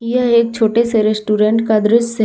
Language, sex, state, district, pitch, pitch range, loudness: Hindi, female, Jharkhand, Palamu, 225 Hz, 215-235 Hz, -14 LUFS